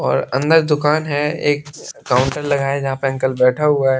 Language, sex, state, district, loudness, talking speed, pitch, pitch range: Hindi, male, Bihar, West Champaran, -17 LUFS, 195 wpm, 145 Hz, 135-150 Hz